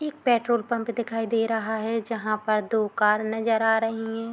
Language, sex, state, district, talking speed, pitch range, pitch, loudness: Hindi, female, Bihar, Madhepura, 205 wpm, 220-230 Hz, 225 Hz, -25 LUFS